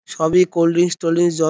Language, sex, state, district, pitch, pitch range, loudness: Bengali, male, West Bengal, North 24 Parganas, 170 Hz, 165-175 Hz, -17 LUFS